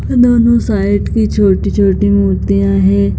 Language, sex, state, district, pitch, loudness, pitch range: Hindi, female, Bihar, Madhepura, 100 Hz, -12 LUFS, 95-100 Hz